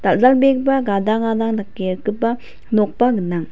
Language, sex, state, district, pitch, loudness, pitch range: Garo, female, Meghalaya, West Garo Hills, 220 Hz, -18 LUFS, 200-245 Hz